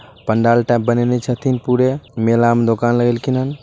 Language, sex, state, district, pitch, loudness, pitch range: Magahi, male, Bihar, Samastipur, 120 Hz, -16 LUFS, 120-130 Hz